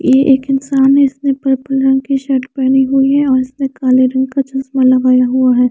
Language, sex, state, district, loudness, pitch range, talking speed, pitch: Hindi, female, Chandigarh, Chandigarh, -13 LUFS, 260-275 Hz, 220 wpm, 265 Hz